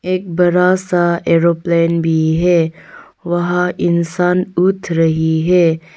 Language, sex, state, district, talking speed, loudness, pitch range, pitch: Hindi, female, Arunachal Pradesh, Longding, 110 wpm, -14 LUFS, 165-180 Hz, 175 Hz